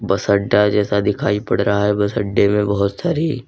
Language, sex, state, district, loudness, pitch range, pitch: Hindi, male, Uttar Pradesh, Lalitpur, -17 LUFS, 100-105 Hz, 105 Hz